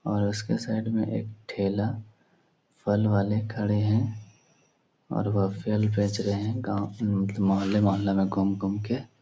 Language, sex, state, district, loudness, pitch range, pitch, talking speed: Hindi, male, Bihar, Supaul, -27 LUFS, 100-110 Hz, 105 Hz, 150 wpm